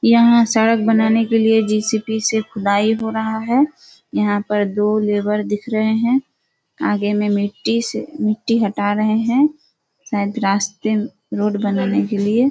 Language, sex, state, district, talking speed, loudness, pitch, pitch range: Hindi, female, Bihar, Kishanganj, 155 wpm, -18 LUFS, 215 Hz, 205-225 Hz